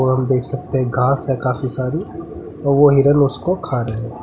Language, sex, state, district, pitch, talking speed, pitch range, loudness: Hindi, male, Uttarakhand, Tehri Garhwal, 130 Hz, 225 wpm, 125-140 Hz, -17 LUFS